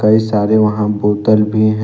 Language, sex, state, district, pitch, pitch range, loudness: Hindi, male, Jharkhand, Ranchi, 105 Hz, 105-110 Hz, -13 LUFS